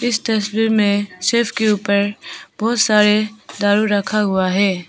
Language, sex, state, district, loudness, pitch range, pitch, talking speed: Hindi, female, Arunachal Pradesh, Papum Pare, -17 LUFS, 200-220 Hz, 210 Hz, 145 wpm